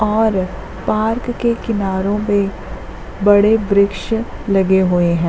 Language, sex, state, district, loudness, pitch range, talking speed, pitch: Hindi, female, Jharkhand, Jamtara, -16 LUFS, 190-220 Hz, 115 wpm, 205 Hz